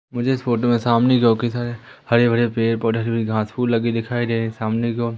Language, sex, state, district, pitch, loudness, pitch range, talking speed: Hindi, female, Madhya Pradesh, Umaria, 120 Hz, -20 LUFS, 115-120 Hz, 255 wpm